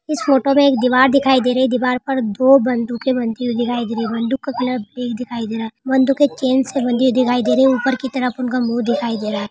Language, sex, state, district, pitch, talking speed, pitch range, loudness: Hindi, female, Rajasthan, Churu, 250 Hz, 285 wpm, 240-265 Hz, -17 LUFS